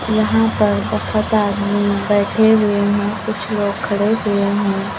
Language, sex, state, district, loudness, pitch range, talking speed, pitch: Hindi, female, Uttar Pradesh, Lucknow, -17 LUFS, 205-215 Hz, 145 wpm, 205 Hz